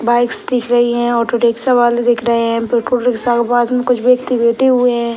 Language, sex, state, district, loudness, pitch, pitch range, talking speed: Hindi, male, Bihar, Sitamarhi, -14 LUFS, 240 Hz, 235-245 Hz, 220 wpm